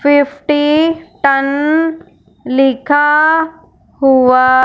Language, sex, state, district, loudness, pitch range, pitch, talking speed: Hindi, female, Punjab, Fazilka, -12 LUFS, 270-315 Hz, 290 Hz, 50 wpm